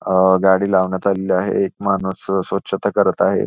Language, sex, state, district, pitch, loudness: Marathi, male, Maharashtra, Pune, 95 Hz, -17 LUFS